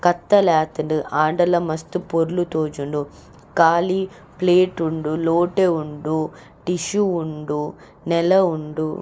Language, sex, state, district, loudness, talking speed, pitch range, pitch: Tulu, female, Karnataka, Dakshina Kannada, -20 LUFS, 95 wpm, 155-180 Hz, 165 Hz